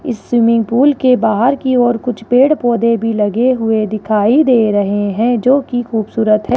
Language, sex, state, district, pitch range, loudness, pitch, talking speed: Hindi, male, Rajasthan, Jaipur, 220-250 Hz, -13 LUFS, 235 Hz, 190 wpm